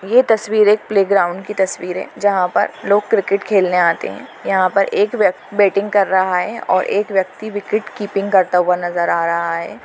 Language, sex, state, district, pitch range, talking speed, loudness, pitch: Hindi, female, Maharashtra, Nagpur, 180-205 Hz, 195 wpm, -16 LUFS, 195 Hz